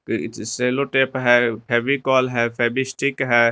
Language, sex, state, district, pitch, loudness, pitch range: Hindi, male, Jharkhand, Garhwa, 125 Hz, -20 LUFS, 120-130 Hz